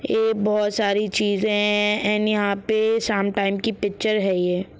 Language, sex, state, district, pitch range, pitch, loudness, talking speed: Hindi, male, Jharkhand, Jamtara, 200-215 Hz, 210 Hz, -21 LUFS, 175 wpm